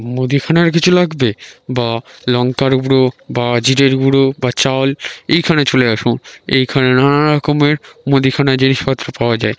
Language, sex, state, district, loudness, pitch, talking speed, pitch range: Bengali, male, West Bengal, North 24 Parganas, -14 LUFS, 135 Hz, 130 wpm, 125-140 Hz